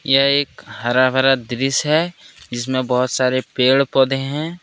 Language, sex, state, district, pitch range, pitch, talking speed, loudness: Hindi, male, Jharkhand, Ranchi, 130-140 Hz, 135 Hz, 155 wpm, -17 LUFS